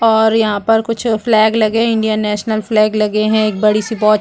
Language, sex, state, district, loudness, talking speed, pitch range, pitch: Hindi, female, Chhattisgarh, Bastar, -14 LUFS, 255 wpm, 215-225 Hz, 220 Hz